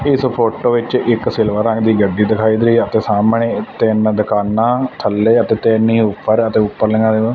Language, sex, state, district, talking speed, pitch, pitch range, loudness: Punjabi, male, Punjab, Fazilka, 180 wpm, 110 Hz, 110-115 Hz, -14 LUFS